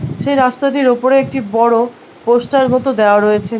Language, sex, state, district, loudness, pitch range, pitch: Bengali, female, West Bengal, Malda, -13 LUFS, 230-265 Hz, 245 Hz